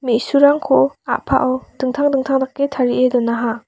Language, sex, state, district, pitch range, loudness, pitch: Garo, female, Meghalaya, West Garo Hills, 245-275 Hz, -17 LUFS, 260 Hz